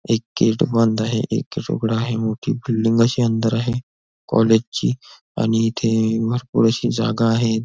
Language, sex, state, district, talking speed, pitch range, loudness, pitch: Marathi, male, Maharashtra, Nagpur, 165 wpm, 110-115 Hz, -19 LUFS, 115 Hz